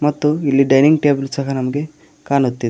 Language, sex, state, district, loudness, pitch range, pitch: Kannada, male, Karnataka, Koppal, -16 LUFS, 135-150 Hz, 140 Hz